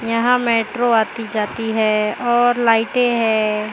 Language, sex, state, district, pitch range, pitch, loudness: Hindi, female, Maharashtra, Mumbai Suburban, 215-240 Hz, 230 Hz, -17 LUFS